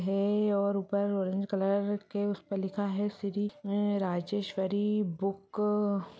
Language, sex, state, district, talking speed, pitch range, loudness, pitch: Hindi, female, Uttar Pradesh, Ghazipur, 125 wpm, 195-205 Hz, -31 LUFS, 200 Hz